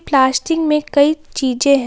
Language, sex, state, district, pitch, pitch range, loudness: Hindi, female, Jharkhand, Palamu, 285 Hz, 265-305 Hz, -16 LUFS